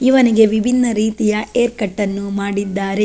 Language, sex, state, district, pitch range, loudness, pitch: Kannada, female, Karnataka, Dakshina Kannada, 200-235 Hz, -16 LUFS, 215 Hz